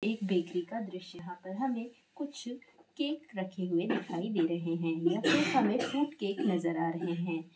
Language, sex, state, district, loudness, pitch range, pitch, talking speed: Hindi, female, Bihar, Darbhanga, -33 LUFS, 170-240 Hz, 185 Hz, 200 wpm